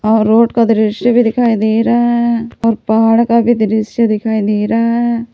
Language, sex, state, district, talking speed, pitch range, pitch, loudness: Hindi, female, Jharkhand, Palamu, 200 wpm, 220-235 Hz, 230 Hz, -12 LUFS